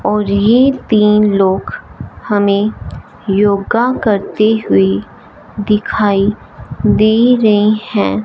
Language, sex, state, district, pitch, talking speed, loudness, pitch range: Hindi, male, Punjab, Fazilka, 210 Hz, 85 wpm, -13 LUFS, 200-220 Hz